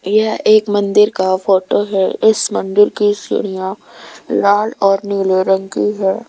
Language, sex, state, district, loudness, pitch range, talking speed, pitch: Hindi, female, Rajasthan, Jaipur, -14 LUFS, 190-210 Hz, 150 wpm, 200 Hz